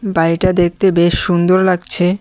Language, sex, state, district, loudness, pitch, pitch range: Bengali, male, Tripura, West Tripura, -14 LUFS, 180 Hz, 175-185 Hz